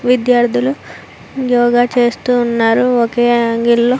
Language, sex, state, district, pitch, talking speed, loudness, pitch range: Telugu, female, Andhra Pradesh, Visakhapatnam, 240 Hz, 105 wpm, -13 LUFS, 235-250 Hz